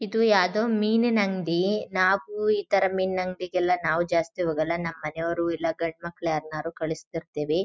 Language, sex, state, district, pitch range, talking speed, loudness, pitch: Kannada, female, Karnataka, Chamarajanagar, 165-195 Hz, 140 wpm, -26 LUFS, 175 Hz